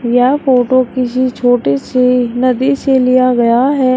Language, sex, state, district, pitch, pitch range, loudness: Hindi, female, Uttar Pradesh, Shamli, 255 Hz, 245-255 Hz, -12 LUFS